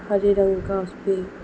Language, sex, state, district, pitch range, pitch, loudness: Hindi, female, Maharashtra, Solapur, 195-200 Hz, 195 Hz, -22 LUFS